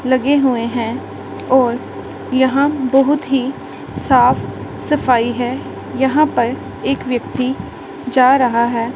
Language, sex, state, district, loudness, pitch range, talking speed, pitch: Hindi, female, Punjab, Pathankot, -16 LUFS, 245-270 Hz, 115 wpm, 260 Hz